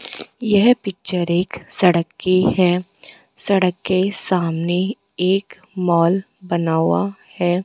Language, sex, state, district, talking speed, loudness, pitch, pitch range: Hindi, female, Rajasthan, Jaipur, 110 wpm, -19 LUFS, 185 Hz, 175-195 Hz